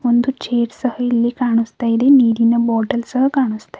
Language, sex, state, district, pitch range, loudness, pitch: Kannada, female, Karnataka, Bidar, 230-255 Hz, -16 LUFS, 240 Hz